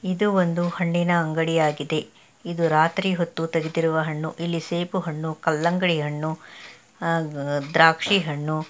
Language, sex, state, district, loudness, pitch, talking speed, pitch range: Kannada, female, Karnataka, Mysore, -23 LUFS, 165 Hz, 115 wpm, 155-175 Hz